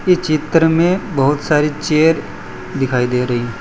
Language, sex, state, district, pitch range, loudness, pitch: Hindi, male, Gujarat, Valsad, 125-160 Hz, -15 LUFS, 150 Hz